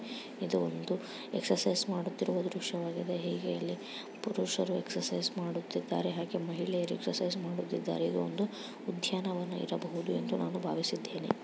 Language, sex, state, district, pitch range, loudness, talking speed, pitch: Kannada, female, Karnataka, Raichur, 170-185 Hz, -35 LUFS, 115 wpm, 180 Hz